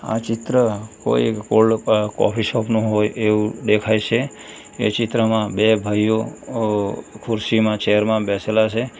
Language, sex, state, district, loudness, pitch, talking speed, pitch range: Gujarati, male, Gujarat, Valsad, -19 LUFS, 110 Hz, 140 wpm, 105-115 Hz